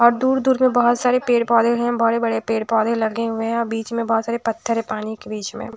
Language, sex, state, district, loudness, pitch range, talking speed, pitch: Hindi, female, Odisha, Sambalpur, -20 LUFS, 225-240 Hz, 270 wpm, 230 Hz